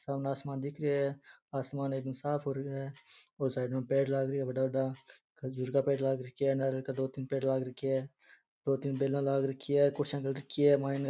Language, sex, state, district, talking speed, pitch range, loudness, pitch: Rajasthani, male, Rajasthan, Churu, 250 wpm, 135-140 Hz, -33 LUFS, 135 Hz